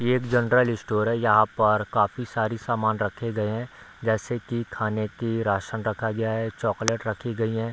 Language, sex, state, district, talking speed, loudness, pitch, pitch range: Hindi, male, Bihar, Darbhanga, 195 wpm, -25 LUFS, 115 Hz, 110-115 Hz